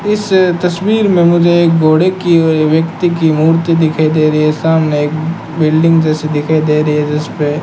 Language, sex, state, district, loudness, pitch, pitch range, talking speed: Hindi, male, Rajasthan, Bikaner, -11 LUFS, 160 Hz, 155-170 Hz, 195 wpm